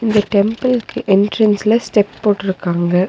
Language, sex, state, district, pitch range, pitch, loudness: Tamil, female, Tamil Nadu, Nilgiris, 195-220 Hz, 210 Hz, -15 LUFS